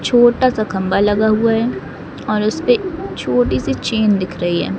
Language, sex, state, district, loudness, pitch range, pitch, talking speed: Hindi, female, Madhya Pradesh, Katni, -16 LUFS, 175-225 Hz, 210 Hz, 190 wpm